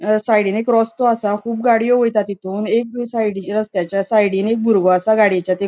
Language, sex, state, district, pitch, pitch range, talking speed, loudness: Konkani, female, Goa, North and South Goa, 215 Hz, 200-230 Hz, 200 wpm, -17 LUFS